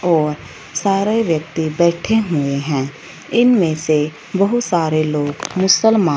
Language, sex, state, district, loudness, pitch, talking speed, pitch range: Hindi, female, Punjab, Fazilka, -17 LUFS, 165 Hz, 115 wpm, 155-195 Hz